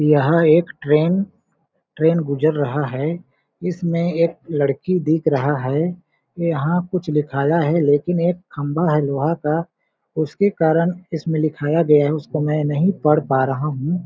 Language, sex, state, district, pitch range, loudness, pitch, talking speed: Hindi, male, Chhattisgarh, Balrampur, 145-170 Hz, -19 LUFS, 155 Hz, 155 wpm